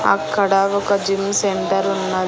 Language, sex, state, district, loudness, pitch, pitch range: Telugu, female, Andhra Pradesh, Annamaya, -18 LUFS, 195 Hz, 185-200 Hz